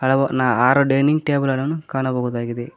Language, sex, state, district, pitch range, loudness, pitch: Kannada, male, Karnataka, Koppal, 125-140 Hz, -19 LUFS, 135 Hz